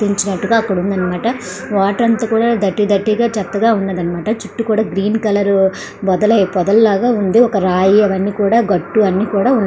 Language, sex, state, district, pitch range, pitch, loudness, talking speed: Telugu, female, Andhra Pradesh, Srikakulam, 195-225 Hz, 205 Hz, -15 LUFS, 175 wpm